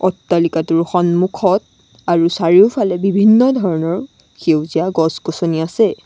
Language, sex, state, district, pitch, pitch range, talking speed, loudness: Assamese, female, Assam, Sonitpur, 175 Hz, 165-195 Hz, 90 wpm, -15 LUFS